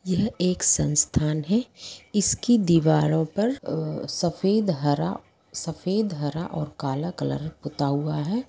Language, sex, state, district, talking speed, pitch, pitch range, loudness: Hindi, female, Jharkhand, Sahebganj, 125 wpm, 165 Hz, 150-200 Hz, -24 LUFS